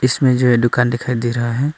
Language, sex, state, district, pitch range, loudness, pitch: Hindi, male, Arunachal Pradesh, Papum Pare, 120-125 Hz, -16 LUFS, 125 Hz